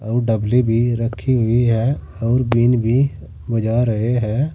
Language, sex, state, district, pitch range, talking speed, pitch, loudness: Hindi, male, Uttar Pradesh, Saharanpur, 115-125 Hz, 145 wpm, 115 Hz, -18 LUFS